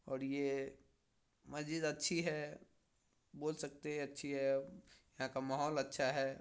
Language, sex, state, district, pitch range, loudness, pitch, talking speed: Hindi, male, Bihar, Samastipur, 135-150 Hz, -41 LUFS, 140 Hz, 140 wpm